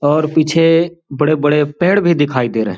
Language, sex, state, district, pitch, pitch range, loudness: Hindi, male, Chhattisgarh, Balrampur, 155 Hz, 145-165 Hz, -14 LUFS